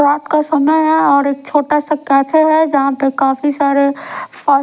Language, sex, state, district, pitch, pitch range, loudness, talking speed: Hindi, female, Odisha, Sambalpur, 285 Hz, 280-305 Hz, -13 LUFS, 180 wpm